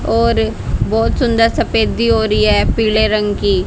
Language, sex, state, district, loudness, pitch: Hindi, female, Haryana, Charkhi Dadri, -14 LUFS, 215 Hz